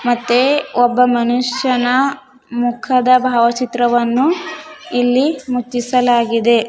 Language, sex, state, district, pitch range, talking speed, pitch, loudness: Kannada, female, Karnataka, Bidar, 240-265 Hz, 65 wpm, 250 Hz, -15 LUFS